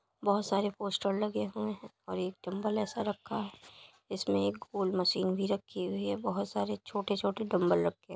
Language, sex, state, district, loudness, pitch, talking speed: Hindi, male, Uttar Pradesh, Jalaun, -33 LUFS, 190 Hz, 200 wpm